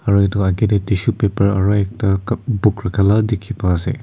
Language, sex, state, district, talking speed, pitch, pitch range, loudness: Nagamese, male, Nagaland, Kohima, 210 wpm, 100 Hz, 100-110 Hz, -17 LUFS